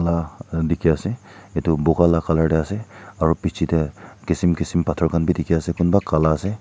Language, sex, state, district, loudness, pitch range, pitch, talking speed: Nagamese, male, Nagaland, Kohima, -21 LUFS, 80-95 Hz, 85 Hz, 200 wpm